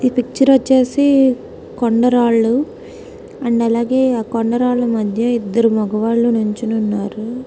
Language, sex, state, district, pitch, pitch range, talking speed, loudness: Telugu, female, Telangana, Karimnagar, 240 Hz, 225-260 Hz, 95 wpm, -15 LUFS